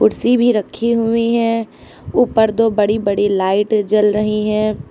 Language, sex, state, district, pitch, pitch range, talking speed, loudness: Hindi, female, Uttar Pradesh, Lucknow, 215 Hz, 210-230 Hz, 160 wpm, -16 LUFS